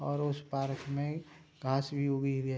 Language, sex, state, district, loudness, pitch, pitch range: Hindi, male, Bihar, Sitamarhi, -35 LUFS, 140 Hz, 135-145 Hz